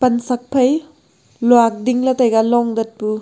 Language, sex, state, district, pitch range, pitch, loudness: Wancho, female, Arunachal Pradesh, Longding, 225-255 Hz, 240 Hz, -16 LUFS